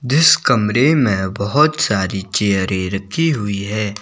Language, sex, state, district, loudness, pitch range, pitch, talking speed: Hindi, male, Himachal Pradesh, Shimla, -16 LUFS, 100-135 Hz, 105 Hz, 135 wpm